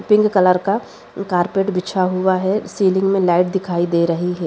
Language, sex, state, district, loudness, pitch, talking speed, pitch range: Hindi, female, Uttar Pradesh, Jalaun, -17 LUFS, 185 Hz, 185 wpm, 180-195 Hz